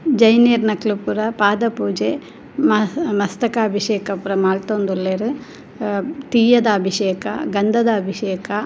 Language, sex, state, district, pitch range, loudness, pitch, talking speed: Tulu, female, Karnataka, Dakshina Kannada, 200-230 Hz, -18 LUFS, 210 Hz, 90 wpm